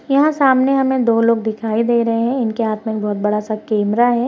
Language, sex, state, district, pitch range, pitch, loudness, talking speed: Hindi, female, Bihar, Darbhanga, 215-255 Hz, 230 Hz, -17 LUFS, 225 wpm